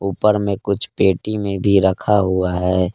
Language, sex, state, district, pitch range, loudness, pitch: Hindi, male, Jharkhand, Palamu, 95-105 Hz, -18 LUFS, 100 Hz